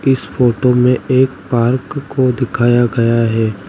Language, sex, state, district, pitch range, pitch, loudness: Hindi, male, Uttar Pradesh, Lalitpur, 115-130 Hz, 125 Hz, -14 LUFS